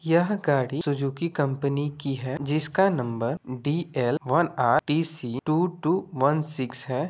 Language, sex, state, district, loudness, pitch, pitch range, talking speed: Hindi, male, Bihar, Gopalganj, -26 LUFS, 145 Hz, 130-160 Hz, 160 wpm